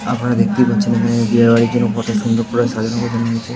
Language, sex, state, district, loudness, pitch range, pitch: Bengali, male, West Bengal, Jalpaiguri, -16 LUFS, 115-120 Hz, 115 Hz